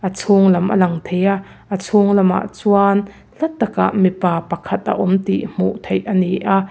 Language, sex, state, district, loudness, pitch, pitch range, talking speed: Mizo, female, Mizoram, Aizawl, -17 LUFS, 190 Hz, 180-200 Hz, 190 wpm